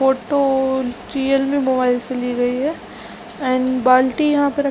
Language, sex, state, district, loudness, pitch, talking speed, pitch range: Hindi, female, Chhattisgarh, Raigarh, -18 LUFS, 265 Hz, 165 wpm, 255-280 Hz